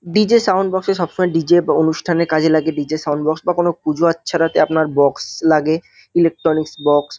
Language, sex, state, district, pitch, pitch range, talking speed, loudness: Bengali, male, West Bengal, North 24 Parganas, 165 Hz, 155-175 Hz, 185 wpm, -16 LUFS